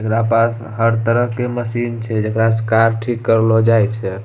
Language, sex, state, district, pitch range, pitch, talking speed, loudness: Angika, male, Bihar, Bhagalpur, 110-115 Hz, 115 Hz, 200 wpm, -16 LUFS